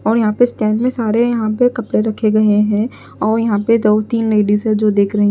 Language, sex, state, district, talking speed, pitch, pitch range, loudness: Hindi, female, Punjab, Pathankot, 260 wpm, 215 Hz, 210-230 Hz, -15 LUFS